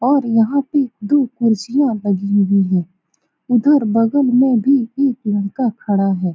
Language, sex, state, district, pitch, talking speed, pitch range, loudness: Hindi, female, Bihar, Saran, 230 Hz, 160 wpm, 200-270 Hz, -16 LUFS